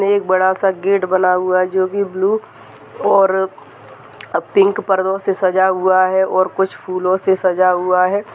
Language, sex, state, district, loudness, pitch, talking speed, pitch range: Hindi, male, Bihar, Jahanabad, -16 LUFS, 190 Hz, 180 wpm, 185-195 Hz